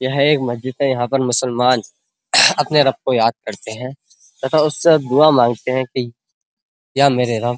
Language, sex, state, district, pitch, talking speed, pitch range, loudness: Hindi, male, Uttar Pradesh, Muzaffarnagar, 130 Hz, 180 wpm, 125-140 Hz, -16 LUFS